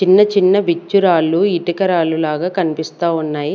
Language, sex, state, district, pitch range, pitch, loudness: Telugu, female, Andhra Pradesh, Sri Satya Sai, 160-190 Hz, 175 Hz, -15 LUFS